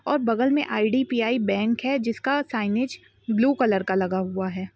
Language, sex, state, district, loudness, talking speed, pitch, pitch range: Hindi, female, Bihar, Araria, -24 LUFS, 175 wpm, 230 Hz, 200-260 Hz